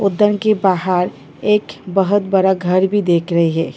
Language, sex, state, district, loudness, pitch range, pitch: Hindi, female, Delhi, New Delhi, -16 LUFS, 180-205 Hz, 190 Hz